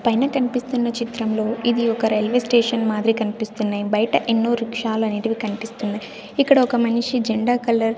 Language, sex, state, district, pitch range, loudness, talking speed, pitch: Telugu, female, Andhra Pradesh, Sri Satya Sai, 220-240 Hz, -20 LUFS, 160 wpm, 230 Hz